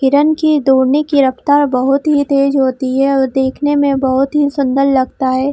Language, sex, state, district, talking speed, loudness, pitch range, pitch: Hindi, female, Jharkhand, Jamtara, 195 wpm, -13 LUFS, 265-290 Hz, 275 Hz